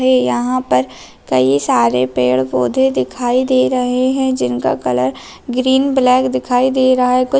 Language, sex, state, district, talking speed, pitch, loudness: Hindi, female, Bihar, Araria, 160 wpm, 240 Hz, -15 LUFS